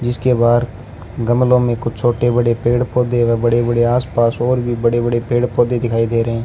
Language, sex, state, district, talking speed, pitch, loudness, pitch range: Hindi, male, Rajasthan, Bikaner, 215 wpm, 120 Hz, -16 LUFS, 115-120 Hz